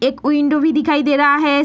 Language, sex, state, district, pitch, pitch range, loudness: Hindi, female, Bihar, Sitamarhi, 290 Hz, 285-300 Hz, -15 LUFS